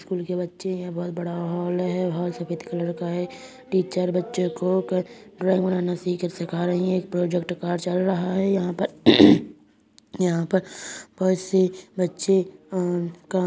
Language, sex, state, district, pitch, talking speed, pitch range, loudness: Hindi, female, Uttar Pradesh, Hamirpur, 180 Hz, 185 wpm, 175-185 Hz, -24 LUFS